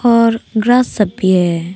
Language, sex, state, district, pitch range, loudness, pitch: Hindi, female, Arunachal Pradesh, Papum Pare, 185-235 Hz, -13 LUFS, 220 Hz